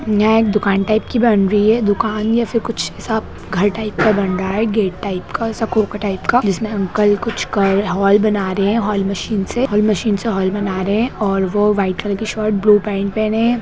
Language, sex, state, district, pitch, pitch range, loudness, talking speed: Hindi, female, Bihar, Gaya, 210 Hz, 195-220 Hz, -17 LUFS, 240 wpm